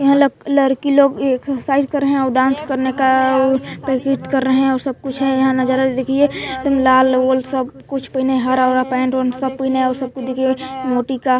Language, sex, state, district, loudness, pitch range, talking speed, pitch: Hindi, female, Chhattisgarh, Balrampur, -17 LUFS, 260-270 Hz, 230 wpm, 265 Hz